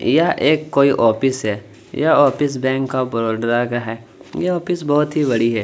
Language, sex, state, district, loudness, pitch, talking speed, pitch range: Hindi, male, Chhattisgarh, Kabirdham, -17 LUFS, 130 Hz, 190 wpm, 115-145 Hz